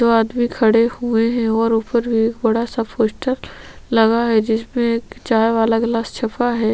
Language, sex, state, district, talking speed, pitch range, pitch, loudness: Hindi, female, Chhattisgarh, Sukma, 150 wpm, 225-235 Hz, 230 Hz, -18 LUFS